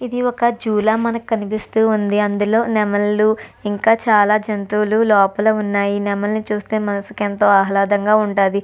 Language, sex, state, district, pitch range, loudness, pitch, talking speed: Telugu, female, Andhra Pradesh, Chittoor, 205-220 Hz, -17 LUFS, 210 Hz, 140 wpm